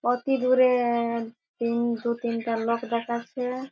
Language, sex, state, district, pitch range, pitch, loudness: Bengali, female, West Bengal, Jhargram, 235-250 Hz, 235 Hz, -26 LUFS